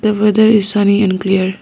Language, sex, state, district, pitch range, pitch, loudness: English, female, Arunachal Pradesh, Lower Dibang Valley, 195-210 Hz, 205 Hz, -12 LUFS